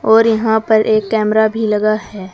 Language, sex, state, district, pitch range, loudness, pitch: Hindi, female, Uttar Pradesh, Saharanpur, 215-220 Hz, -14 LUFS, 220 Hz